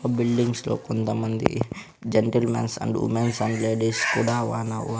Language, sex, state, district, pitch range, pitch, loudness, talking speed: Telugu, male, Andhra Pradesh, Sri Satya Sai, 110-120 Hz, 115 Hz, -24 LUFS, 130 wpm